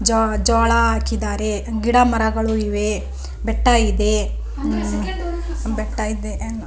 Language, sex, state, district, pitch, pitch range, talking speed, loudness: Kannada, female, Karnataka, Raichur, 215 Hz, 210-230 Hz, 90 wpm, -20 LUFS